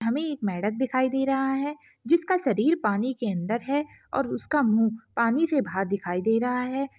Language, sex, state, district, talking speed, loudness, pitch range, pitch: Hindi, female, Uttarakhand, Tehri Garhwal, 205 wpm, -26 LUFS, 220-285 Hz, 255 Hz